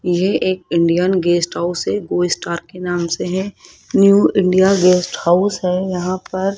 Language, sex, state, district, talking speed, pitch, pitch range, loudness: Hindi, male, Rajasthan, Jaipur, 175 wpm, 180 Hz, 175-190 Hz, -16 LUFS